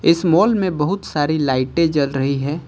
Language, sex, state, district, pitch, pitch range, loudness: Hindi, male, Uttar Pradesh, Lucknow, 155 Hz, 140-170 Hz, -18 LUFS